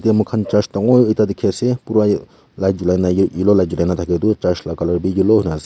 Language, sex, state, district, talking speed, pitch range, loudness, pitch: Nagamese, male, Nagaland, Kohima, 235 wpm, 90-110 Hz, -17 LUFS, 100 Hz